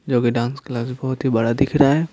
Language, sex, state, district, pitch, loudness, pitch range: Hindi, male, Bihar, Patna, 130 Hz, -20 LUFS, 120-140 Hz